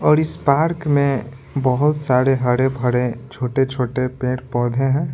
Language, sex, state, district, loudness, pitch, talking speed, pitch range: Hindi, male, Bihar, Patna, -19 LUFS, 130 Hz, 130 wpm, 125-140 Hz